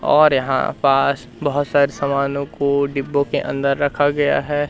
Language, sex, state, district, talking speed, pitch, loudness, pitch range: Hindi, male, Madhya Pradesh, Katni, 165 wpm, 140 Hz, -18 LUFS, 140-145 Hz